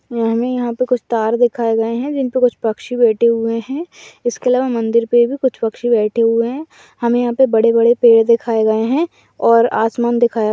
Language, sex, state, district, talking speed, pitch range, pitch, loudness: Hindi, female, Rajasthan, Churu, 210 wpm, 230-245 Hz, 235 Hz, -15 LUFS